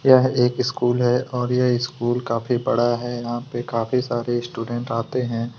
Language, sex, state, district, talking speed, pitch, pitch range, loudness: Hindi, male, Chhattisgarh, Kabirdham, 170 wpm, 120 Hz, 120-125 Hz, -22 LUFS